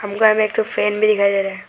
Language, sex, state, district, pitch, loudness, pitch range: Hindi, male, Arunachal Pradesh, Lower Dibang Valley, 210 Hz, -17 LUFS, 200-215 Hz